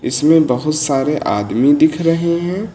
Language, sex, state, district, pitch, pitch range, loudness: Hindi, male, Uttar Pradesh, Lucknow, 155 Hz, 140-165 Hz, -15 LUFS